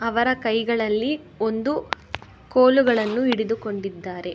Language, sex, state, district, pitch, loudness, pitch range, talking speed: Kannada, female, Karnataka, Bangalore, 225 Hz, -22 LUFS, 215-255 Hz, 70 wpm